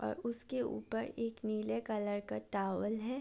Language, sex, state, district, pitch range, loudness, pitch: Hindi, female, Bihar, Gopalganj, 205-235 Hz, -38 LUFS, 220 Hz